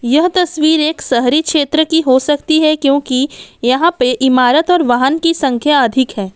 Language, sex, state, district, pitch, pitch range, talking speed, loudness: Hindi, female, Assam, Kamrup Metropolitan, 285 Hz, 255-315 Hz, 180 wpm, -13 LUFS